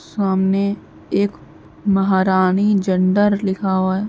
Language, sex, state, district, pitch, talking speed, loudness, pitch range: Hindi, male, Uttar Pradesh, Jalaun, 190 Hz, 105 wpm, -18 LUFS, 185-200 Hz